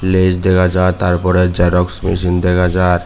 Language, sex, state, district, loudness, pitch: Chakma, male, Tripura, Dhalai, -14 LUFS, 90 Hz